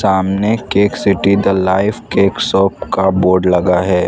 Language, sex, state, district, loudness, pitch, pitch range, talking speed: Hindi, male, Gujarat, Valsad, -14 LUFS, 95 Hz, 95-100 Hz, 160 wpm